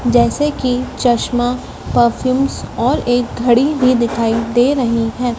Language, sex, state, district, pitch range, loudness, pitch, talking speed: Hindi, female, Madhya Pradesh, Dhar, 235-255 Hz, -15 LUFS, 245 Hz, 135 wpm